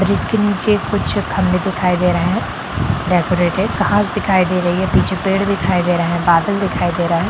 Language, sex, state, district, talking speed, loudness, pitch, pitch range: Hindi, female, Bihar, Gaya, 215 wpm, -16 LUFS, 180 Hz, 175-195 Hz